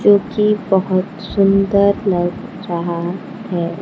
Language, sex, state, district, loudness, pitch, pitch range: Hindi, female, Bihar, Kaimur, -17 LUFS, 195 Hz, 180-205 Hz